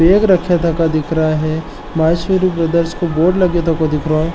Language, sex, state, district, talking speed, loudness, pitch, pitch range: Marwari, male, Rajasthan, Nagaur, 205 wpm, -15 LUFS, 165 Hz, 160-175 Hz